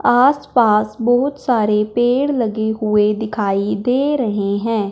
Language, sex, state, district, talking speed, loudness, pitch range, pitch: Hindi, male, Punjab, Fazilka, 120 wpm, -17 LUFS, 210-250 Hz, 220 Hz